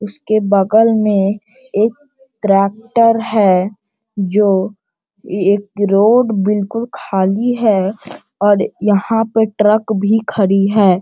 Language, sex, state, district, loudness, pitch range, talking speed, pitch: Hindi, male, Bihar, Sitamarhi, -14 LUFS, 195-225 Hz, 110 wpm, 210 Hz